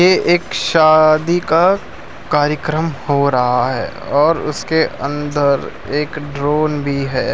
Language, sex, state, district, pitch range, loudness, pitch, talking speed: Hindi, male, Maharashtra, Mumbai Suburban, 140-160 Hz, -16 LUFS, 150 Hz, 125 wpm